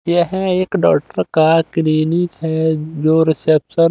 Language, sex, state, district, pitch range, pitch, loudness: Hindi, male, Haryana, Jhajjar, 155-175 Hz, 160 Hz, -16 LUFS